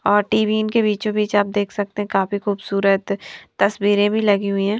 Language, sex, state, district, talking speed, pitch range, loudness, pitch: Hindi, female, Himachal Pradesh, Shimla, 200 wpm, 200-210 Hz, -19 LUFS, 205 Hz